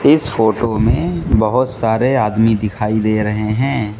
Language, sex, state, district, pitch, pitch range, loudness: Hindi, male, Mizoram, Aizawl, 110 Hz, 110-125 Hz, -15 LUFS